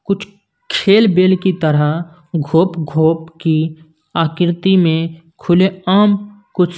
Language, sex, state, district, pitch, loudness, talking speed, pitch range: Hindi, male, Punjab, Kapurthala, 175 Hz, -15 LUFS, 115 wpm, 160-190 Hz